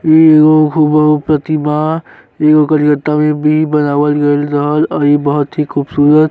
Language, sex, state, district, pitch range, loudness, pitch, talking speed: Bhojpuri, male, Uttar Pradesh, Gorakhpur, 145-155 Hz, -11 LUFS, 150 Hz, 115 wpm